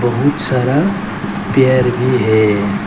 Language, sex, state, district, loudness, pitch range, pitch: Hindi, male, Arunachal Pradesh, Lower Dibang Valley, -14 LUFS, 110-130 Hz, 125 Hz